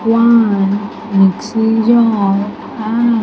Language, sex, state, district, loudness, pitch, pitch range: English, female, Andhra Pradesh, Sri Satya Sai, -13 LUFS, 225 Hz, 205-230 Hz